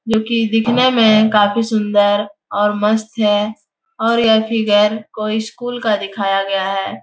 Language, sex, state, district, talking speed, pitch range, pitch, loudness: Hindi, female, Bihar, Jahanabad, 155 wpm, 205-225 Hz, 215 Hz, -16 LUFS